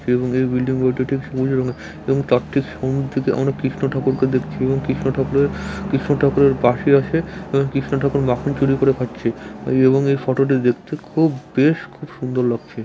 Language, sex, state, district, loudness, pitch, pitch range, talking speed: Bengali, male, West Bengal, Malda, -19 LUFS, 135 Hz, 130-140 Hz, 175 wpm